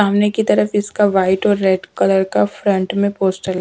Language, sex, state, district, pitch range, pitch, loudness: Hindi, female, Punjab, Pathankot, 185-205 Hz, 195 Hz, -16 LUFS